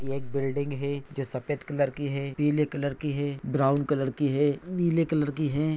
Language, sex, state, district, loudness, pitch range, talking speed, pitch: Hindi, male, Maharashtra, Nagpur, -28 LUFS, 140-150 Hz, 230 wpm, 145 Hz